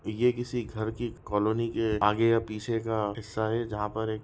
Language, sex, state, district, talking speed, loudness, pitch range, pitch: Hindi, male, Bihar, Jahanabad, 225 wpm, -29 LUFS, 110-115 Hz, 110 Hz